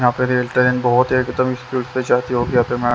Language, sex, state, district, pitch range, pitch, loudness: Hindi, male, Haryana, Jhajjar, 120-130 Hz, 125 Hz, -18 LUFS